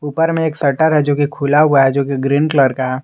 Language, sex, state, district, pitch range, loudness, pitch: Hindi, male, Jharkhand, Garhwa, 140-150 Hz, -14 LUFS, 145 Hz